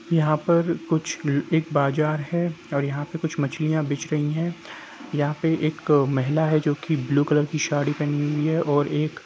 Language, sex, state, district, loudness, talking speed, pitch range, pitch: Hindi, male, Jharkhand, Jamtara, -23 LUFS, 190 wpm, 145-160 Hz, 150 Hz